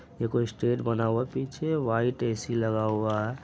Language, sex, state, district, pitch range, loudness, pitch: Hindi, male, Bihar, Araria, 110-125 Hz, -28 LUFS, 115 Hz